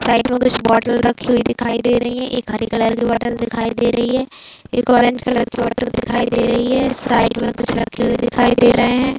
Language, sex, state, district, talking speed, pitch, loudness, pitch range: Hindi, female, Chhattisgarh, Bastar, 240 wpm, 240 Hz, -16 LUFS, 235-245 Hz